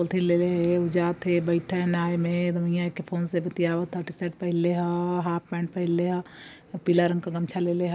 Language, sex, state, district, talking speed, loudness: Awadhi, male, Uttar Pradesh, Varanasi, 195 wpm, -26 LUFS